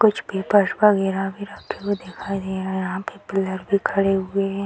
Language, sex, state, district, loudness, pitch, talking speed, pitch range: Hindi, female, Bihar, Purnia, -22 LUFS, 195 Hz, 220 wpm, 190-200 Hz